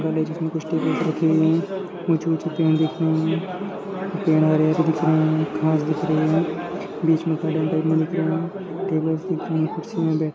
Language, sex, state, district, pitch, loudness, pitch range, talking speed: Hindi, male, Jharkhand, Sahebganj, 160 Hz, -22 LUFS, 155-170 Hz, 185 wpm